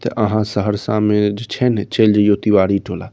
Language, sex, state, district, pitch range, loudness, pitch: Maithili, male, Bihar, Saharsa, 100-110 Hz, -16 LUFS, 105 Hz